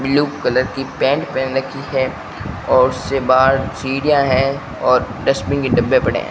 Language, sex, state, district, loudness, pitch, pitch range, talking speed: Hindi, male, Rajasthan, Bikaner, -17 LUFS, 135 Hz, 130-135 Hz, 170 wpm